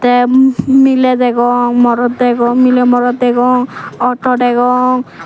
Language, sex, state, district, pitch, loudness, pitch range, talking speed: Chakma, female, Tripura, Dhalai, 245 Hz, -11 LUFS, 245-255 Hz, 125 wpm